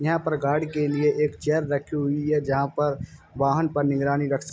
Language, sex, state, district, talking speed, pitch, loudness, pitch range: Hindi, male, Uttar Pradesh, Jalaun, 210 wpm, 145 Hz, -24 LUFS, 140-150 Hz